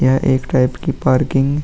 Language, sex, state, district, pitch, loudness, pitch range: Hindi, male, Uttar Pradesh, Jalaun, 130 Hz, -16 LUFS, 130-140 Hz